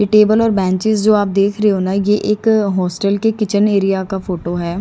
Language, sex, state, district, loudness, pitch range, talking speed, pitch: Hindi, female, Haryana, Jhajjar, -15 LUFS, 190-215 Hz, 235 wpm, 205 Hz